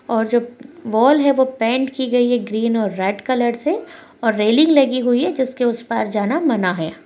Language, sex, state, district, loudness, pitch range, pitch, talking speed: Hindi, female, Maharashtra, Dhule, -18 LUFS, 225-270 Hz, 245 Hz, 205 wpm